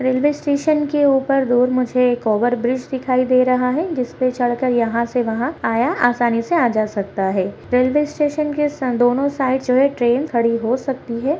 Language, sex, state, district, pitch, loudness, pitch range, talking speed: Hindi, female, Bihar, Kishanganj, 255 Hz, -18 LUFS, 240-275 Hz, 210 wpm